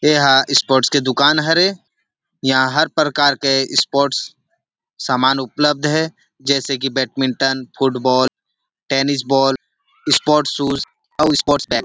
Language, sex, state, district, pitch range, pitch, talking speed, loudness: Chhattisgarhi, male, Chhattisgarh, Rajnandgaon, 135-150 Hz, 140 Hz, 120 wpm, -16 LUFS